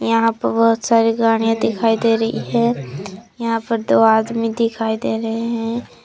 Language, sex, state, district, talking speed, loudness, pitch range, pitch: Hindi, female, Jharkhand, Palamu, 170 wpm, -18 LUFS, 220-230 Hz, 225 Hz